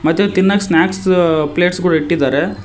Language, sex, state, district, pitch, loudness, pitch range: Kannada, male, Karnataka, Koppal, 175 Hz, -14 LUFS, 165-190 Hz